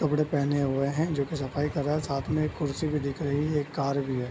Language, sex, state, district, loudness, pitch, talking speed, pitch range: Hindi, male, Bihar, Bhagalpur, -28 LUFS, 145 Hz, 305 wpm, 140-150 Hz